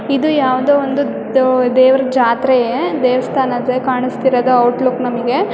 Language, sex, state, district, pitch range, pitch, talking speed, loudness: Kannada, female, Karnataka, Dakshina Kannada, 250-265 Hz, 255 Hz, 110 wpm, -14 LUFS